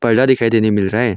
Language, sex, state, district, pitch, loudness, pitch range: Hindi, male, Arunachal Pradesh, Longding, 115 Hz, -14 LUFS, 110-120 Hz